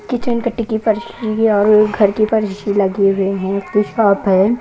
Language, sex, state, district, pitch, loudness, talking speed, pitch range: Hindi, female, Maharashtra, Washim, 210 Hz, -15 LUFS, 180 wpm, 200-220 Hz